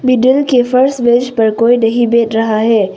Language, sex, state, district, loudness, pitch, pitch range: Hindi, female, Arunachal Pradesh, Papum Pare, -11 LUFS, 240 Hz, 225-250 Hz